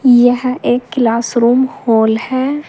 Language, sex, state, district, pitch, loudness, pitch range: Hindi, female, Uttar Pradesh, Saharanpur, 245 Hz, -13 LUFS, 235-260 Hz